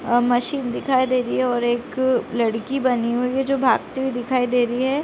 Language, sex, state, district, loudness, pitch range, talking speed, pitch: Hindi, female, Bihar, Sitamarhi, -21 LUFS, 240-260 Hz, 225 wpm, 250 Hz